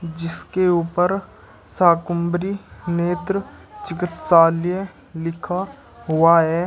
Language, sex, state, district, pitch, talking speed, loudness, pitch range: Hindi, male, Uttar Pradesh, Shamli, 175 Hz, 70 wpm, -20 LUFS, 165-185 Hz